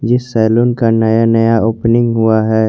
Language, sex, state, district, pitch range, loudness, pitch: Hindi, male, Jharkhand, Garhwa, 110-115 Hz, -12 LUFS, 115 Hz